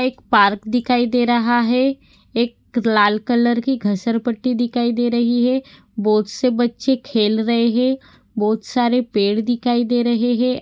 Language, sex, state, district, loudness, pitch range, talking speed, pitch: Hindi, female, Maharashtra, Pune, -18 LUFS, 225-245 Hz, 160 wpm, 240 Hz